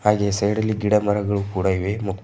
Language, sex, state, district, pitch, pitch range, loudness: Kannada, male, Karnataka, Bidar, 100 Hz, 100-105 Hz, -21 LUFS